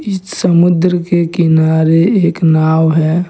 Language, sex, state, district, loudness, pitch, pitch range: Hindi, male, Jharkhand, Deoghar, -11 LUFS, 170 Hz, 160-180 Hz